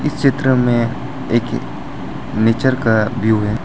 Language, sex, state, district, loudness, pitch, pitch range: Hindi, male, Arunachal Pradesh, Lower Dibang Valley, -17 LUFS, 120 Hz, 110-130 Hz